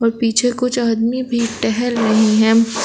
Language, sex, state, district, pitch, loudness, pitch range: Hindi, female, Uttar Pradesh, Shamli, 230 Hz, -16 LUFS, 225-245 Hz